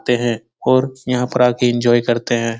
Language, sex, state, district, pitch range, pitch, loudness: Hindi, male, Bihar, Supaul, 120-125 Hz, 120 Hz, -17 LUFS